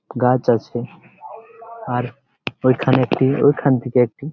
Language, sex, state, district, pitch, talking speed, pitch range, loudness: Bengali, male, West Bengal, Jalpaiguri, 130 Hz, 110 wpm, 125-145 Hz, -18 LUFS